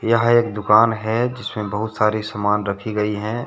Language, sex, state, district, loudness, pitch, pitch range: Hindi, male, Jharkhand, Deoghar, -19 LUFS, 110 Hz, 105-115 Hz